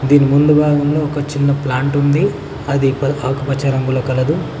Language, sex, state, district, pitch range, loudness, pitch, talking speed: Telugu, male, Telangana, Mahabubabad, 135-145 Hz, -15 LUFS, 140 Hz, 145 wpm